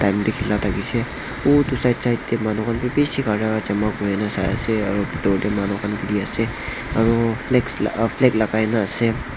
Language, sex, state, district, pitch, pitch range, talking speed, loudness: Nagamese, male, Nagaland, Dimapur, 110 Hz, 105-120 Hz, 175 wpm, -20 LUFS